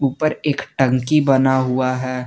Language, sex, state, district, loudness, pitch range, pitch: Hindi, male, Jharkhand, Garhwa, -18 LUFS, 130-140 Hz, 130 Hz